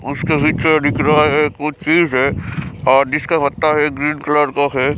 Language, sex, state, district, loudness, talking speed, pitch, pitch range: Hindi, male, Bihar, Kishanganj, -15 LUFS, 190 wpm, 150 Hz, 140-155 Hz